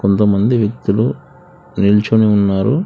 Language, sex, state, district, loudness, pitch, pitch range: Telugu, male, Telangana, Hyderabad, -14 LUFS, 105 Hz, 100-110 Hz